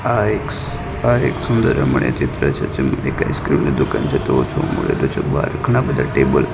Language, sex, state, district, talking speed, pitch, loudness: Gujarati, male, Gujarat, Gandhinagar, 200 wpm, 105 Hz, -18 LUFS